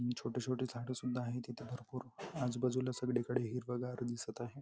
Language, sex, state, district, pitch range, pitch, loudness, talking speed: Marathi, male, Maharashtra, Nagpur, 120-125 Hz, 125 Hz, -40 LUFS, 170 wpm